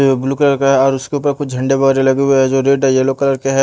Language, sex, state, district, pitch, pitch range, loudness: Hindi, male, Haryana, Jhajjar, 135 Hz, 135-140 Hz, -14 LUFS